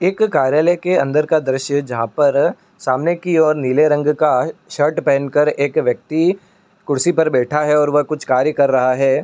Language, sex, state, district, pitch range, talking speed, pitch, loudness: Hindi, male, Uttar Pradesh, Etah, 140-170 Hz, 180 wpm, 150 Hz, -16 LUFS